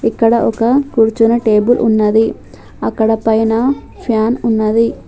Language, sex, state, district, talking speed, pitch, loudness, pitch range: Telugu, female, Telangana, Adilabad, 105 wpm, 225 Hz, -13 LUFS, 220-235 Hz